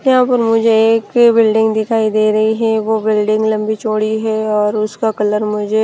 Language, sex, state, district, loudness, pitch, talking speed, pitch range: Hindi, female, Bihar, Kaimur, -14 LUFS, 220 Hz, 185 wpm, 215-225 Hz